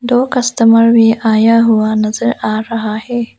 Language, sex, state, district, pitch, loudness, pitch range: Hindi, female, Arunachal Pradesh, Lower Dibang Valley, 230 Hz, -12 LUFS, 220-235 Hz